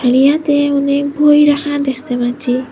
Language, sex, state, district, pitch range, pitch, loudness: Bengali, female, Assam, Hailakandi, 255-290 Hz, 280 Hz, -13 LUFS